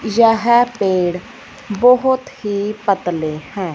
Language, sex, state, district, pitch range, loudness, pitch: Hindi, female, Punjab, Fazilka, 190-240 Hz, -16 LUFS, 210 Hz